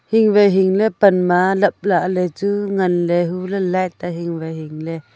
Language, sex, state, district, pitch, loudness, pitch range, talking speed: Wancho, female, Arunachal Pradesh, Longding, 180 Hz, -17 LUFS, 175-200 Hz, 140 wpm